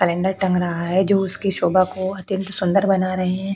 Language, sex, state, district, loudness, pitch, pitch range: Hindi, female, Chhattisgarh, Korba, -20 LUFS, 190 Hz, 180-195 Hz